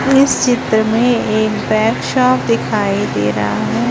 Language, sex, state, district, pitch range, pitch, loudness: Hindi, female, Chhattisgarh, Raipur, 215-245 Hz, 220 Hz, -14 LUFS